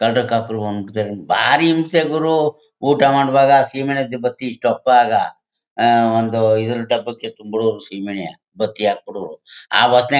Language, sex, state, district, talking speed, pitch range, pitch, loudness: Kannada, male, Karnataka, Mysore, 125 wpm, 110-140 Hz, 125 Hz, -17 LUFS